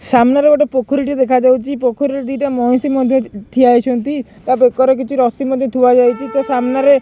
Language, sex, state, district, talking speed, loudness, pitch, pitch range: Odia, male, Odisha, Khordha, 190 wpm, -14 LUFS, 260 Hz, 250-275 Hz